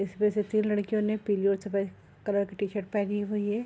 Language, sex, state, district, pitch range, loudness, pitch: Hindi, female, Bihar, Kishanganj, 200-210 Hz, -29 LUFS, 205 Hz